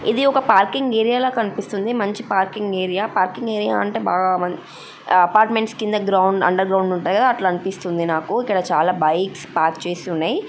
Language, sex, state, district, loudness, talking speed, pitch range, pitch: Telugu, female, Andhra Pradesh, Guntur, -19 LUFS, 155 wpm, 180-215 Hz, 190 Hz